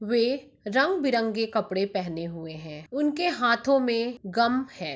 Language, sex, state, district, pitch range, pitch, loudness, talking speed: Hindi, female, Uttar Pradesh, Etah, 195-270 Hz, 235 Hz, -26 LUFS, 135 wpm